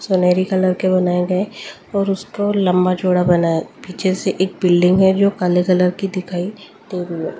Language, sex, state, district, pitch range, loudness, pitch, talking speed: Hindi, female, Delhi, New Delhi, 180-190 Hz, -17 LUFS, 185 Hz, 200 wpm